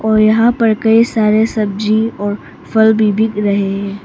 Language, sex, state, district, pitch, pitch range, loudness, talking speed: Hindi, female, Arunachal Pradesh, Papum Pare, 215 Hz, 205-220 Hz, -13 LUFS, 180 wpm